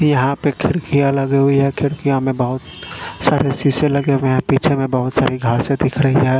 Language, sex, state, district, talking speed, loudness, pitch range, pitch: Hindi, male, Punjab, Fazilka, 195 wpm, -17 LUFS, 130-140 Hz, 140 Hz